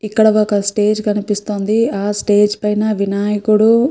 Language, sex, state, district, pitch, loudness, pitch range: Telugu, female, Andhra Pradesh, Guntur, 210 Hz, -15 LUFS, 205-215 Hz